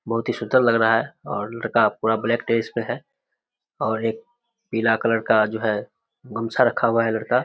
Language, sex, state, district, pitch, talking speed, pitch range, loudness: Hindi, male, Bihar, Samastipur, 115 Hz, 200 wpm, 110-115 Hz, -22 LUFS